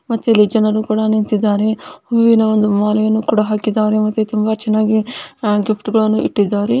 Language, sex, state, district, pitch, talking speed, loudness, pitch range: Kannada, female, Karnataka, Bellary, 215 Hz, 150 wpm, -15 LUFS, 215-220 Hz